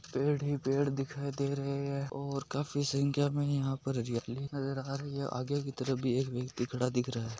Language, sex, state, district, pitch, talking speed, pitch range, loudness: Hindi, male, Rajasthan, Nagaur, 140 Hz, 220 wpm, 130-140 Hz, -34 LUFS